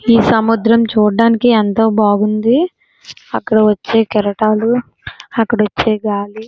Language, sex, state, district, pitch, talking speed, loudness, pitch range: Telugu, female, Andhra Pradesh, Srikakulam, 220 Hz, 110 wpm, -13 LUFS, 210-230 Hz